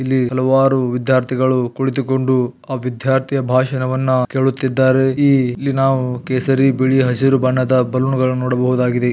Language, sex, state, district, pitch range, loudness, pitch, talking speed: Kannada, male, Karnataka, Belgaum, 125-135 Hz, -16 LUFS, 130 Hz, 120 wpm